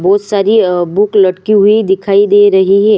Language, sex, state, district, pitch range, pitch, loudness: Hindi, female, Chhattisgarh, Sukma, 190-205 Hz, 200 Hz, -10 LUFS